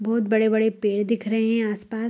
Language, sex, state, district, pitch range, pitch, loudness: Hindi, female, Bihar, Saharsa, 215-225 Hz, 220 Hz, -22 LUFS